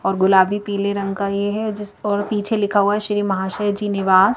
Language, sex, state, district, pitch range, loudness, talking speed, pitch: Hindi, female, Madhya Pradesh, Bhopal, 195-205 Hz, -19 LUFS, 205 wpm, 205 Hz